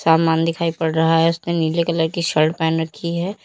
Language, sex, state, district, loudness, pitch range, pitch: Hindi, female, Uttar Pradesh, Lalitpur, -19 LUFS, 160-170 Hz, 165 Hz